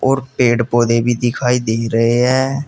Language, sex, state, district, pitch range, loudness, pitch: Hindi, male, Uttar Pradesh, Saharanpur, 115-130 Hz, -15 LUFS, 120 Hz